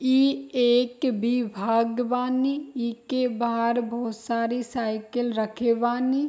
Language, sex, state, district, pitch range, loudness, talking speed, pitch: Bhojpuri, female, Bihar, East Champaran, 230-255 Hz, -25 LUFS, 105 wpm, 240 Hz